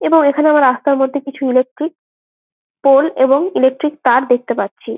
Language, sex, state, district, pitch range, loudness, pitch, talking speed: Bengali, female, West Bengal, Malda, 260-300 Hz, -14 LUFS, 275 Hz, 155 wpm